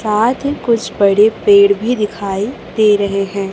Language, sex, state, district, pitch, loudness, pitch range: Hindi, female, Chhattisgarh, Raipur, 210 Hz, -14 LUFS, 200-225 Hz